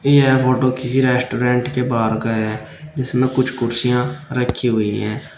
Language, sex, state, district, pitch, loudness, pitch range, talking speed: Hindi, male, Uttar Pradesh, Shamli, 125 Hz, -18 LUFS, 120-130 Hz, 155 wpm